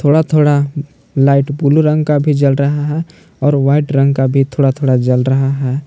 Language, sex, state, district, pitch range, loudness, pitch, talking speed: Hindi, male, Jharkhand, Palamu, 135-150 Hz, -13 LUFS, 140 Hz, 205 wpm